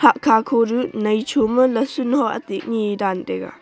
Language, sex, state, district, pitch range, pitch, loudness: Wancho, female, Arunachal Pradesh, Longding, 215-260 Hz, 230 Hz, -19 LUFS